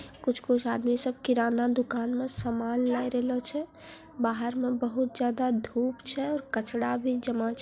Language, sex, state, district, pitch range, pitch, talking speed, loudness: Maithili, female, Bihar, Bhagalpur, 235-255 Hz, 245 Hz, 175 wpm, -29 LUFS